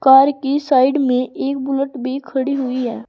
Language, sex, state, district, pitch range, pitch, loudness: Hindi, female, Uttar Pradesh, Saharanpur, 255-275 Hz, 270 Hz, -17 LUFS